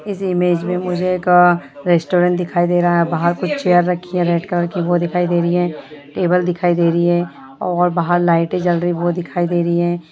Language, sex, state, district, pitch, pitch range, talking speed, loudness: Hindi, female, Bihar, Purnia, 175 Hz, 170-180 Hz, 225 wpm, -16 LUFS